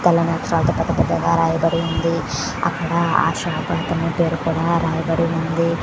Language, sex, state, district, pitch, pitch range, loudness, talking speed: Telugu, female, Andhra Pradesh, Visakhapatnam, 165 Hz, 165-170 Hz, -19 LUFS, 155 wpm